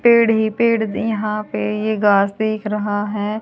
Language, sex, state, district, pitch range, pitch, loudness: Hindi, female, Haryana, Rohtak, 210-220 Hz, 215 Hz, -18 LUFS